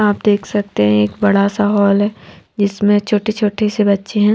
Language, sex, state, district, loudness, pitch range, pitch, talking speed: Hindi, female, Haryana, Charkhi Dadri, -15 LUFS, 200-210 Hz, 205 Hz, 205 wpm